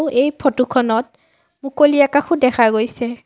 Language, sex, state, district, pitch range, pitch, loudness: Assamese, female, Assam, Sonitpur, 240-285 Hz, 255 Hz, -16 LUFS